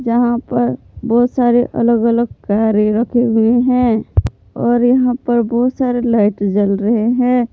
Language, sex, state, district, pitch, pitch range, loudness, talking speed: Hindi, female, Jharkhand, Palamu, 240 Hz, 225-245 Hz, -15 LUFS, 150 wpm